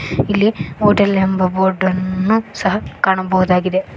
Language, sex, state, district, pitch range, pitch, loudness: Kannada, female, Karnataka, Koppal, 185-200 Hz, 190 Hz, -16 LUFS